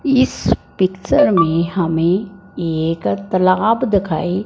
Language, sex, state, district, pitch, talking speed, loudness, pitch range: Hindi, male, Punjab, Fazilka, 185 Hz, 95 wpm, -17 LUFS, 170-210 Hz